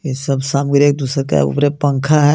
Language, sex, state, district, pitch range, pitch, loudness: Hindi, male, Jharkhand, Garhwa, 135-145 Hz, 140 Hz, -15 LUFS